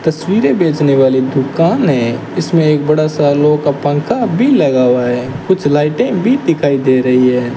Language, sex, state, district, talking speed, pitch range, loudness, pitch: Hindi, male, Rajasthan, Bikaner, 175 wpm, 130-160 Hz, -12 LUFS, 145 Hz